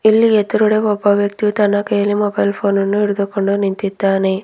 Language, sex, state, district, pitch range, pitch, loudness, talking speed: Kannada, female, Karnataka, Bidar, 200-210 Hz, 205 Hz, -16 LUFS, 150 wpm